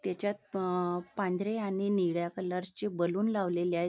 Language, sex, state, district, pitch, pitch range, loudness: Marathi, female, Maharashtra, Nagpur, 185 Hz, 175-205 Hz, -32 LUFS